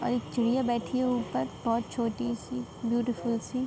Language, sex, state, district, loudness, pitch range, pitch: Hindi, female, Uttar Pradesh, Budaun, -30 LUFS, 230-245 Hz, 235 Hz